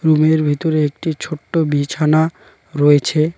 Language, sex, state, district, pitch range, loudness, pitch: Bengali, male, West Bengal, Cooch Behar, 145-160 Hz, -16 LUFS, 155 Hz